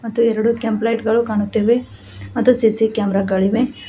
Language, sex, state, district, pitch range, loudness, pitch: Kannada, female, Karnataka, Koppal, 205-230 Hz, -17 LUFS, 225 Hz